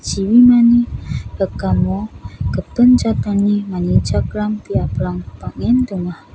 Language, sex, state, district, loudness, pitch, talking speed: Garo, female, Meghalaya, South Garo Hills, -16 LUFS, 195 Hz, 75 wpm